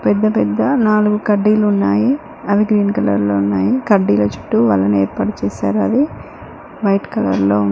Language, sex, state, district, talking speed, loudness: Telugu, female, Telangana, Mahabubabad, 150 wpm, -15 LUFS